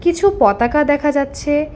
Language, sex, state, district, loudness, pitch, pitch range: Bengali, female, West Bengal, Alipurduar, -15 LUFS, 295 Hz, 290-340 Hz